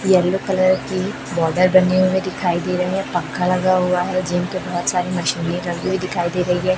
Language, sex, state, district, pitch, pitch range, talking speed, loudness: Hindi, male, Chhattisgarh, Raipur, 180 Hz, 175-185 Hz, 220 wpm, -19 LUFS